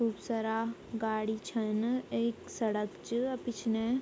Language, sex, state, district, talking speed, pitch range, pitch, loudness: Garhwali, female, Uttarakhand, Tehri Garhwal, 135 wpm, 220-235 Hz, 225 Hz, -34 LUFS